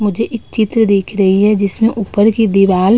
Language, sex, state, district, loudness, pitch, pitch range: Hindi, female, Uttar Pradesh, Budaun, -13 LUFS, 210 Hz, 195-225 Hz